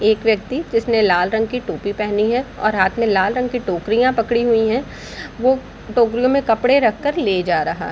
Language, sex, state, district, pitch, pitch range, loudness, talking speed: Hindi, female, Bihar, Darbhanga, 230 Hz, 210-250 Hz, -18 LUFS, 225 wpm